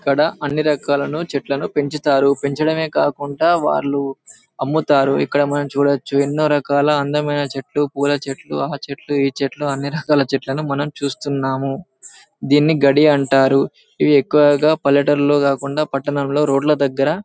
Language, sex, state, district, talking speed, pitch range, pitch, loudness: Telugu, male, Telangana, Karimnagar, 140 wpm, 140-150 Hz, 140 Hz, -17 LUFS